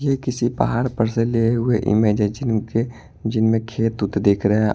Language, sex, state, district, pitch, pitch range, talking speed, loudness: Hindi, male, Bihar, Muzaffarpur, 115 Hz, 105-120 Hz, 215 wpm, -20 LUFS